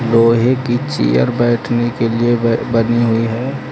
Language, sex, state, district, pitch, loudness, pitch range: Hindi, male, Uttar Pradesh, Lucknow, 115 Hz, -15 LUFS, 115-120 Hz